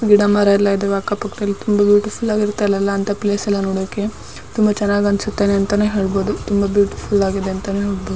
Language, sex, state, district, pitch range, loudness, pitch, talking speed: Kannada, female, Karnataka, Dharwad, 200-205 Hz, -17 LUFS, 205 Hz, 175 wpm